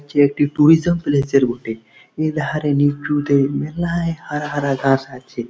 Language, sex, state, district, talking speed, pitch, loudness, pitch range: Bengali, male, West Bengal, Malda, 130 wpm, 145 Hz, -18 LUFS, 135-155 Hz